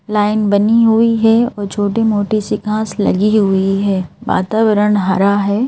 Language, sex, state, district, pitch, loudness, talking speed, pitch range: Hindi, male, Madhya Pradesh, Bhopal, 210 Hz, -14 LUFS, 135 wpm, 200-220 Hz